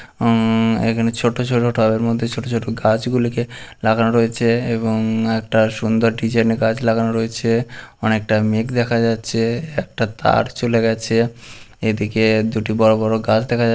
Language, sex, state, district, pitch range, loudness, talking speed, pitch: Bengali, male, West Bengal, Malda, 110-115 Hz, -18 LUFS, 150 wpm, 115 Hz